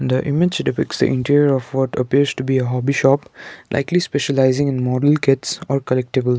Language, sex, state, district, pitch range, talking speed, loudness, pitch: English, male, Sikkim, Gangtok, 130-145 Hz, 190 wpm, -18 LUFS, 135 Hz